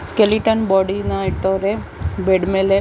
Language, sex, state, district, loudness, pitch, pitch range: Kannada, female, Karnataka, Chamarajanagar, -18 LUFS, 195 Hz, 190-210 Hz